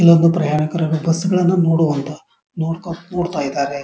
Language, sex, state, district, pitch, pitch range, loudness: Kannada, male, Karnataka, Dharwad, 165 Hz, 150-170 Hz, -18 LUFS